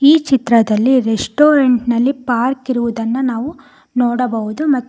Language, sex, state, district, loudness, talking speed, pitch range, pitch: Kannada, female, Karnataka, Koppal, -15 LUFS, 110 wpm, 235-270 Hz, 250 Hz